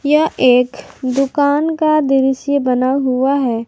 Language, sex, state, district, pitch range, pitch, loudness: Hindi, female, Jharkhand, Garhwa, 255-285 Hz, 270 Hz, -15 LUFS